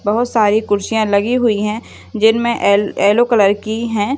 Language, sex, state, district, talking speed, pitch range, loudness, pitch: Hindi, female, Maharashtra, Solapur, 170 wpm, 205-235 Hz, -15 LUFS, 220 Hz